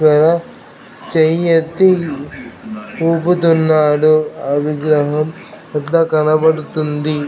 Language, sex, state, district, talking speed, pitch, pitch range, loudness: Telugu, male, Andhra Pradesh, Krishna, 50 wpm, 155 Hz, 150-165 Hz, -14 LUFS